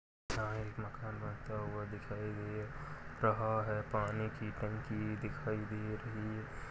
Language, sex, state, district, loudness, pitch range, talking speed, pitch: Hindi, male, Uttar Pradesh, Budaun, -40 LUFS, 105-110 Hz, 145 wpm, 110 Hz